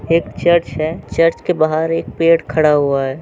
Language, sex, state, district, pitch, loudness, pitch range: Hindi, male, Uttar Pradesh, Jalaun, 160 Hz, -16 LUFS, 150-165 Hz